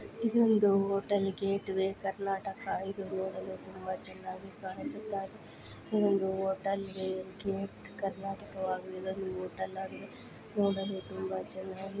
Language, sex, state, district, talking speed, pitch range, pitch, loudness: Kannada, female, Karnataka, Dharwad, 95 wpm, 190-195 Hz, 195 Hz, -34 LUFS